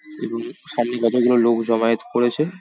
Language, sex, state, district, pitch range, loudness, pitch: Bengali, male, West Bengal, Paschim Medinipur, 115-150 Hz, -20 LUFS, 120 Hz